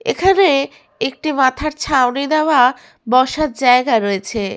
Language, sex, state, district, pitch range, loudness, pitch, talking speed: Bengali, female, West Bengal, Malda, 250-310 Hz, -15 LUFS, 270 Hz, 105 wpm